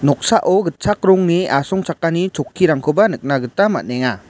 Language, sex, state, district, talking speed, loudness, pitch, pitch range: Garo, male, Meghalaya, West Garo Hills, 110 wpm, -16 LUFS, 165 Hz, 140-185 Hz